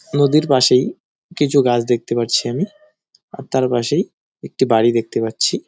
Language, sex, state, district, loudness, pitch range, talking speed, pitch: Bengali, male, West Bengal, Jalpaiguri, -17 LUFS, 120-145 Hz, 160 wpm, 130 Hz